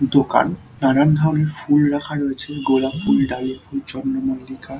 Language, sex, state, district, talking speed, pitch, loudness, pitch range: Bengali, male, West Bengal, Dakshin Dinajpur, 150 wpm, 140 Hz, -19 LUFS, 130-155 Hz